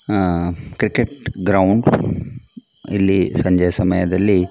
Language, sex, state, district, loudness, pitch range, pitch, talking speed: Kannada, male, Karnataka, Dakshina Kannada, -18 LUFS, 90-105 Hz, 95 Hz, 95 wpm